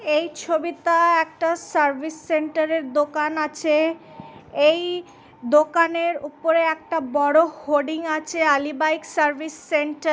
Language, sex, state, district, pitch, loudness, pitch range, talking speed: Bengali, female, West Bengal, Dakshin Dinajpur, 315 Hz, -21 LUFS, 300-325 Hz, 120 wpm